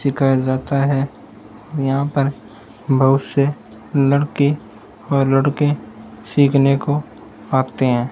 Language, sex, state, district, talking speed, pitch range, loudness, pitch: Hindi, male, Rajasthan, Bikaner, 110 wpm, 130-140 Hz, -18 LUFS, 135 Hz